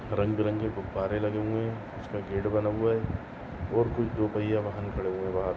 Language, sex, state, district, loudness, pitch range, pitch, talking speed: Hindi, male, Goa, North and South Goa, -30 LUFS, 100-110 Hz, 105 Hz, 205 wpm